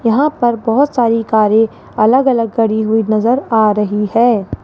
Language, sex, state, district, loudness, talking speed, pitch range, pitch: Hindi, female, Rajasthan, Jaipur, -13 LUFS, 155 wpm, 220-240 Hz, 225 Hz